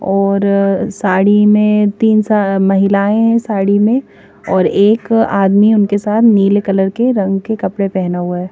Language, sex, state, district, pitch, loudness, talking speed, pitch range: Hindi, female, Bihar, Katihar, 200 Hz, -12 LUFS, 160 wpm, 195-215 Hz